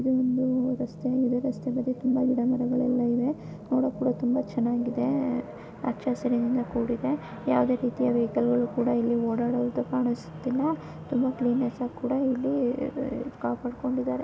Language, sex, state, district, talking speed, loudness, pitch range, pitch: Kannada, female, Karnataka, Shimoga, 120 wpm, -27 LUFS, 240-260 Hz, 255 Hz